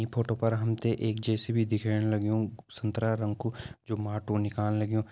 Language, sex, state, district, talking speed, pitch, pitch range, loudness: Hindi, male, Uttarakhand, Uttarkashi, 185 wpm, 110 Hz, 105-115 Hz, -30 LUFS